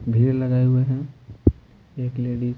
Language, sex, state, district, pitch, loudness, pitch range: Hindi, male, Bihar, Patna, 125 Hz, -22 LUFS, 120-130 Hz